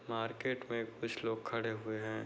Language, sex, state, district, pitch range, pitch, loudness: Hindi, male, Uttar Pradesh, Budaun, 110-115 Hz, 115 Hz, -39 LUFS